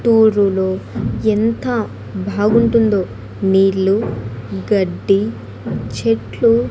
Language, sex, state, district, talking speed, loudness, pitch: Telugu, female, Andhra Pradesh, Annamaya, 55 wpm, -17 LUFS, 195 Hz